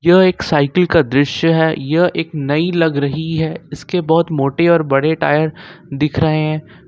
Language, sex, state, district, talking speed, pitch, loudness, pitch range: Hindi, male, Jharkhand, Ranchi, 185 wpm, 160 Hz, -15 LUFS, 150-170 Hz